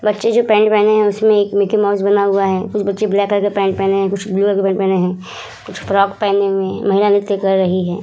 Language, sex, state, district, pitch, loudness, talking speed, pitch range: Hindi, female, Bihar, Vaishali, 200 Hz, -15 LUFS, 285 wpm, 195-205 Hz